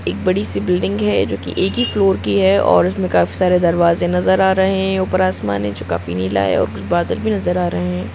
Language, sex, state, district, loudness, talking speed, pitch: Hindi, female, Bihar, Gopalganj, -17 LUFS, 270 wpm, 180 Hz